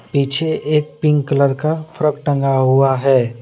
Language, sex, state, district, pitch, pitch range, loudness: Hindi, male, Jharkhand, Deoghar, 140 Hz, 135-150 Hz, -16 LUFS